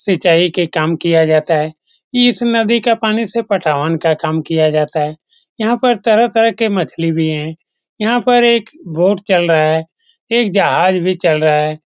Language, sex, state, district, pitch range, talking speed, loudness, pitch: Hindi, male, Bihar, Saran, 160-230 Hz, 180 wpm, -14 LUFS, 180 Hz